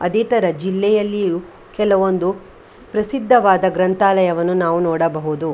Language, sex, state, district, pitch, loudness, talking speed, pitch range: Kannada, female, Karnataka, Dakshina Kannada, 190 Hz, -17 LUFS, 95 wpm, 175-205 Hz